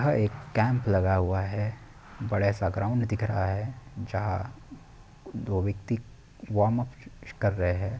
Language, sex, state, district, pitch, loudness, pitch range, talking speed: Hindi, male, Chhattisgarh, Bilaspur, 110 Hz, -29 LUFS, 100-120 Hz, 145 wpm